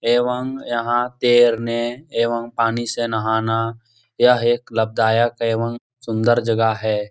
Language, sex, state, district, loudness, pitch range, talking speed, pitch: Hindi, male, Bihar, Jahanabad, -19 LUFS, 115-120 Hz, 120 wpm, 115 Hz